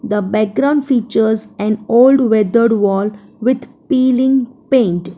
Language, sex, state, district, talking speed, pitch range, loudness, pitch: English, female, Gujarat, Valsad, 115 wpm, 215-255 Hz, -14 LUFS, 230 Hz